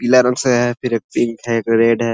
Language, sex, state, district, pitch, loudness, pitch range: Hindi, male, Uttar Pradesh, Ghazipur, 120 Hz, -16 LUFS, 115-125 Hz